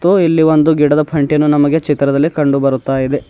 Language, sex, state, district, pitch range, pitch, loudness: Kannada, female, Karnataka, Bidar, 140-160 Hz, 150 Hz, -13 LUFS